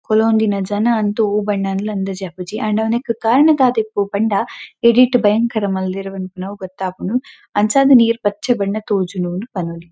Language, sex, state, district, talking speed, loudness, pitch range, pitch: Tulu, female, Karnataka, Dakshina Kannada, 155 wpm, -17 LUFS, 195-230 Hz, 210 Hz